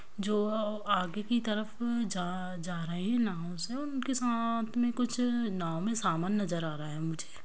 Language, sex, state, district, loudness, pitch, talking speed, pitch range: Hindi, female, Bihar, Kishanganj, -33 LUFS, 210 Hz, 195 wpm, 180-235 Hz